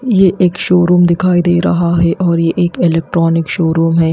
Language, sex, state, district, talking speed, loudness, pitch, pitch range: Hindi, female, Haryana, Rohtak, 190 wpm, -12 LUFS, 175 Hz, 165-180 Hz